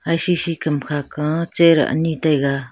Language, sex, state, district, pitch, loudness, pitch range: Wancho, female, Arunachal Pradesh, Longding, 160 Hz, -18 LUFS, 150-165 Hz